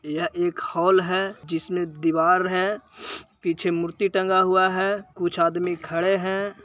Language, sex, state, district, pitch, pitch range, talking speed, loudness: Hindi, male, Bihar, Jahanabad, 185 Hz, 170-195 Hz, 145 wpm, -23 LUFS